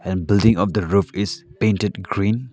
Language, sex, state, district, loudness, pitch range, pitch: English, male, Arunachal Pradesh, Lower Dibang Valley, -20 LUFS, 100-105 Hz, 100 Hz